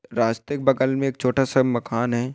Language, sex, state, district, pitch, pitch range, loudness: Hindi, male, Bihar, Bhagalpur, 130 Hz, 120-135 Hz, -22 LUFS